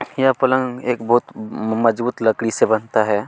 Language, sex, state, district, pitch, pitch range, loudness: Hindi, male, Chhattisgarh, Kabirdham, 120 Hz, 110-130 Hz, -19 LUFS